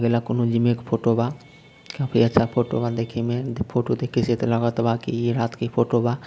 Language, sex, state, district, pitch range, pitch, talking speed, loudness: Bhojpuri, male, Bihar, Sitamarhi, 115-120 Hz, 120 Hz, 190 wpm, -23 LUFS